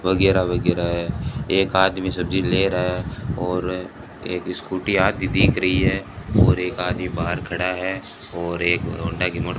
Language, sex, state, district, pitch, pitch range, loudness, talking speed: Hindi, male, Rajasthan, Bikaner, 90 Hz, 90-95 Hz, -21 LUFS, 175 wpm